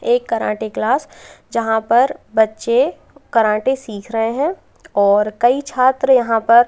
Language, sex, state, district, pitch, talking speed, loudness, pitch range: Hindi, female, Madhya Pradesh, Katni, 230 Hz, 135 wpm, -17 LUFS, 220-255 Hz